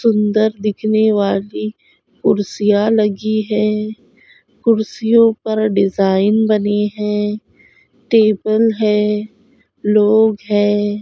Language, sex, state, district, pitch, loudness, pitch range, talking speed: Hindi, female, Goa, North and South Goa, 215 Hz, -15 LUFS, 205-220 Hz, 85 wpm